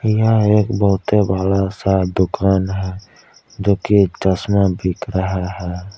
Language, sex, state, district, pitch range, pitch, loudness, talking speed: Hindi, male, Jharkhand, Palamu, 95-100 Hz, 95 Hz, -17 LUFS, 130 wpm